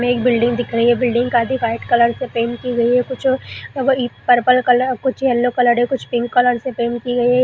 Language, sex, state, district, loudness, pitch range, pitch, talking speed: Hindi, female, Bihar, Jahanabad, -17 LUFS, 240-255 Hz, 245 Hz, 250 wpm